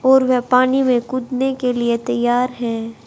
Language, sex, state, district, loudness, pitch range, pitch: Hindi, female, Haryana, Jhajjar, -18 LUFS, 240-255 Hz, 250 Hz